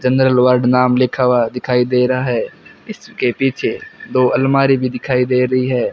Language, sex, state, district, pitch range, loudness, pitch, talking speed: Hindi, male, Rajasthan, Bikaner, 125-130 Hz, -15 LUFS, 125 Hz, 170 wpm